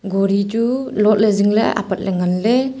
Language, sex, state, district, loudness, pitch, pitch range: Wancho, female, Arunachal Pradesh, Longding, -17 LUFS, 210 Hz, 195-230 Hz